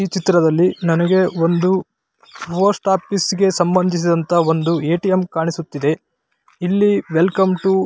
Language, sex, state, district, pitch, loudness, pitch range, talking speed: Kannada, male, Karnataka, Raichur, 180 Hz, -17 LUFS, 170-190 Hz, 105 wpm